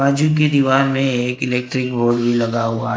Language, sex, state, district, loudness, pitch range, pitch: Hindi, male, Maharashtra, Gondia, -17 LUFS, 120-135 Hz, 125 Hz